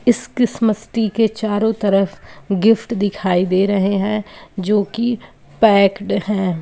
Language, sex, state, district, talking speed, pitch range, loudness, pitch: Hindi, female, Bihar, Saharsa, 135 wpm, 195-225 Hz, -17 LUFS, 205 Hz